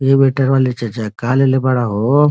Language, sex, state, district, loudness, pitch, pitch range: Bhojpuri, male, Uttar Pradesh, Varanasi, -15 LUFS, 130 Hz, 120-135 Hz